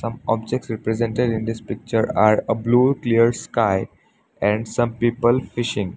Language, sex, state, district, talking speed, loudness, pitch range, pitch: English, male, Assam, Sonitpur, 140 wpm, -20 LUFS, 110-120 Hz, 115 Hz